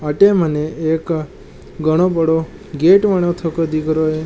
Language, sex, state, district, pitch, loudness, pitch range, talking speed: Marwari, male, Rajasthan, Nagaur, 160 Hz, -16 LUFS, 155-175 Hz, 155 wpm